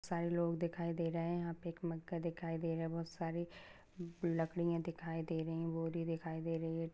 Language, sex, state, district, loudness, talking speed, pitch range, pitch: Hindi, female, Uttar Pradesh, Ghazipur, -41 LUFS, 215 wpm, 165-170 Hz, 165 Hz